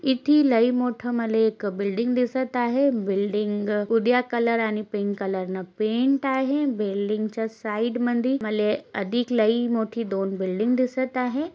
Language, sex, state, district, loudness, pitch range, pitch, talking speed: Marathi, female, Maharashtra, Chandrapur, -24 LUFS, 210-250 Hz, 230 Hz, 135 wpm